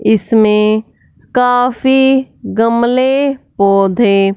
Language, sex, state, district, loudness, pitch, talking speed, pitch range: Hindi, male, Punjab, Fazilka, -12 LUFS, 230 Hz, 55 wpm, 210-260 Hz